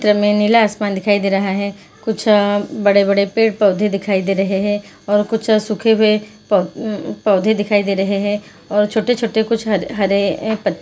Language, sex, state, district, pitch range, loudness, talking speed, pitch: Hindi, female, Uttarakhand, Uttarkashi, 200-215 Hz, -16 LUFS, 170 wpm, 205 Hz